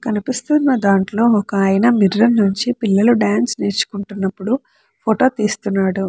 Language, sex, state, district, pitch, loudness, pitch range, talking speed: Telugu, female, Andhra Pradesh, Chittoor, 210 Hz, -16 LUFS, 200-240 Hz, 110 wpm